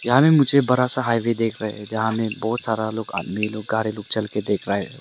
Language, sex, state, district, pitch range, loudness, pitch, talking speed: Hindi, male, Arunachal Pradesh, Lower Dibang Valley, 105-115 Hz, -21 LUFS, 110 Hz, 275 wpm